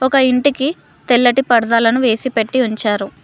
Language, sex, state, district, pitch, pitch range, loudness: Telugu, female, Telangana, Mahabubabad, 245 Hz, 225-260 Hz, -15 LUFS